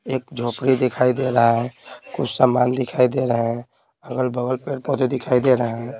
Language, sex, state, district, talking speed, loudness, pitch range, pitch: Hindi, male, Bihar, Patna, 180 wpm, -20 LUFS, 120-130 Hz, 125 Hz